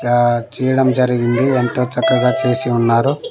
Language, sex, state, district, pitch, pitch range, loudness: Telugu, male, Andhra Pradesh, Manyam, 125 Hz, 120-130 Hz, -15 LUFS